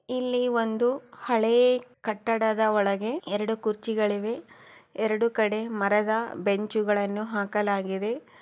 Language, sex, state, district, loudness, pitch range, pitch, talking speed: Kannada, female, Karnataka, Chamarajanagar, -26 LUFS, 210-235 Hz, 220 Hz, 80 wpm